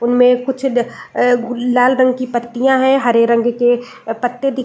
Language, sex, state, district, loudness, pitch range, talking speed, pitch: Hindi, female, Chhattisgarh, Raigarh, -15 LUFS, 240-260 Hz, 165 wpm, 245 Hz